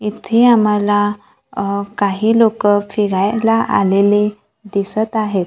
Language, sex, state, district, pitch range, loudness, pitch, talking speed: Marathi, female, Maharashtra, Gondia, 200-215 Hz, -15 LUFS, 205 Hz, 85 wpm